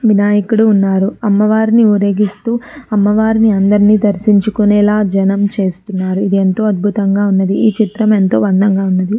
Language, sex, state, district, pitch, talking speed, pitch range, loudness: Telugu, female, Andhra Pradesh, Chittoor, 205 Hz, 120 wpm, 195-215 Hz, -12 LUFS